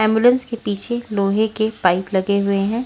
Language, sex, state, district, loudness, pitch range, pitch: Hindi, female, Maharashtra, Washim, -19 LUFS, 200-230 Hz, 215 Hz